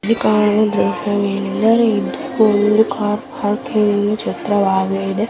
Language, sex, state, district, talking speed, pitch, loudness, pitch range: Kannada, female, Karnataka, Raichur, 125 wpm, 210 Hz, -16 LUFS, 205-220 Hz